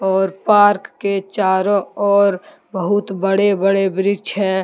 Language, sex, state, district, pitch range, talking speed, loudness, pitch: Hindi, male, Jharkhand, Deoghar, 190-205 Hz, 130 wpm, -16 LUFS, 195 Hz